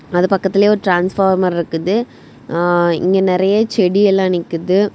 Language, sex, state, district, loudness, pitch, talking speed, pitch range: Tamil, female, Tamil Nadu, Kanyakumari, -15 LUFS, 185 Hz, 135 wpm, 175-195 Hz